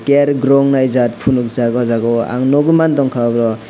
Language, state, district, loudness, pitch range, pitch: Kokborok, Tripura, West Tripura, -14 LUFS, 120-140 Hz, 125 Hz